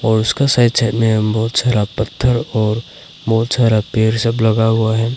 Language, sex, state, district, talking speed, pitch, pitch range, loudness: Hindi, male, Arunachal Pradesh, Longding, 185 wpm, 115 Hz, 110-120 Hz, -15 LUFS